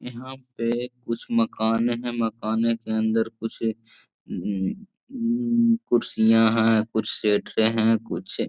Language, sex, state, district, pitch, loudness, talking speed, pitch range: Hindi, male, Bihar, Jahanabad, 115 Hz, -24 LUFS, 125 wpm, 110-120 Hz